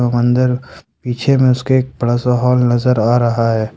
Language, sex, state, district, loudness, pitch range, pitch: Hindi, male, Jharkhand, Ranchi, -14 LUFS, 120-125 Hz, 125 Hz